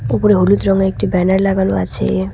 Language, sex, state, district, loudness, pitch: Bengali, female, West Bengal, Cooch Behar, -14 LUFS, 185 Hz